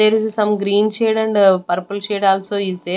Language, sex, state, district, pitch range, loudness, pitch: English, female, Haryana, Rohtak, 195-215 Hz, -17 LUFS, 205 Hz